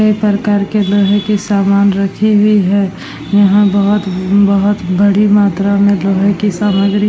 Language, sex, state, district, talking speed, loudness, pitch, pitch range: Hindi, female, Bihar, Vaishali, 150 wpm, -12 LUFS, 200 Hz, 195-205 Hz